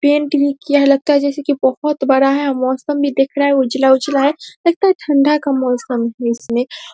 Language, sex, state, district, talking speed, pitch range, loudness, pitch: Hindi, female, Bihar, Saharsa, 215 wpm, 265-290 Hz, -15 LUFS, 280 Hz